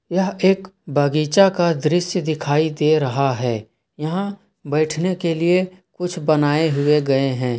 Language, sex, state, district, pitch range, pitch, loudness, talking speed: Hindi, male, Jharkhand, Ranchi, 145-185 Hz, 155 Hz, -19 LUFS, 140 wpm